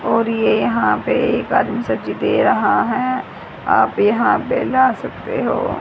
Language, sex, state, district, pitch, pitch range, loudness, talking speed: Hindi, female, Haryana, Jhajjar, 250 Hz, 230-260 Hz, -17 LUFS, 165 wpm